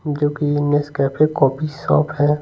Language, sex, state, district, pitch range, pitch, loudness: Hindi, male, Bihar, Patna, 145-150 Hz, 145 Hz, -18 LUFS